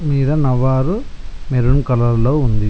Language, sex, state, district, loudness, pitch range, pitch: Telugu, male, Telangana, Mahabubabad, -16 LUFS, 120-145 Hz, 130 Hz